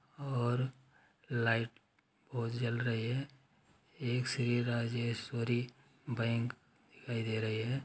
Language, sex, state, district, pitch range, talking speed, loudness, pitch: Hindi, male, Uttar Pradesh, Ghazipur, 115-130 Hz, 105 wpm, -36 LUFS, 120 Hz